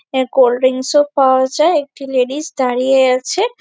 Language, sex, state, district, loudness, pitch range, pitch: Bengali, female, West Bengal, Jalpaiguri, -14 LUFS, 255-290 Hz, 265 Hz